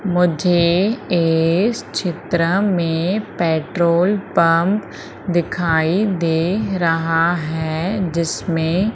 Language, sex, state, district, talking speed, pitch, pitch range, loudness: Hindi, female, Madhya Pradesh, Umaria, 75 wpm, 175 Hz, 165-190 Hz, -18 LUFS